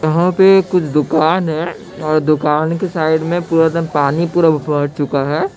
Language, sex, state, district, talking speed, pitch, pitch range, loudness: Hindi, male, Bihar, Kishanganj, 130 wpm, 160 Hz, 150-170 Hz, -15 LUFS